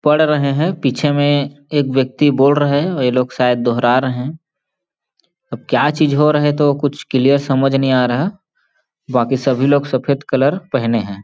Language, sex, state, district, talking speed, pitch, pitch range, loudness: Hindi, male, Chhattisgarh, Balrampur, 200 wpm, 140 Hz, 130-150 Hz, -15 LUFS